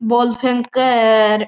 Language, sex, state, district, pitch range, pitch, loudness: Marwari, male, Rajasthan, Churu, 220-250 Hz, 240 Hz, -15 LUFS